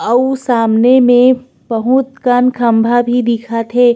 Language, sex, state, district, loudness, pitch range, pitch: Chhattisgarhi, female, Chhattisgarh, Korba, -12 LUFS, 230-255 Hz, 245 Hz